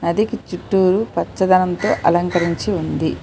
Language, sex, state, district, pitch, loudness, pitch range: Telugu, female, Telangana, Hyderabad, 185 Hz, -18 LUFS, 175-210 Hz